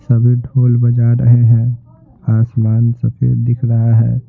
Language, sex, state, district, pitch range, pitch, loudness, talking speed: Hindi, male, Bihar, Patna, 115-125 Hz, 120 Hz, -13 LUFS, 140 wpm